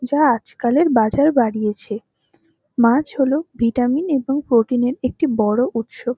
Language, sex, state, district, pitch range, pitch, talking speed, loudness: Bengali, female, West Bengal, North 24 Parganas, 230-280 Hz, 250 Hz, 125 wpm, -18 LUFS